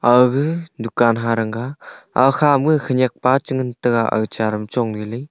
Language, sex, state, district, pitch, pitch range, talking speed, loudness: Wancho, male, Arunachal Pradesh, Longding, 125 Hz, 115-135 Hz, 135 wpm, -18 LUFS